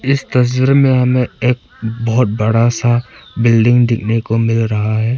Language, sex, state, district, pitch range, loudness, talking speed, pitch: Hindi, male, Arunachal Pradesh, Papum Pare, 115-125 Hz, -14 LUFS, 160 wpm, 120 Hz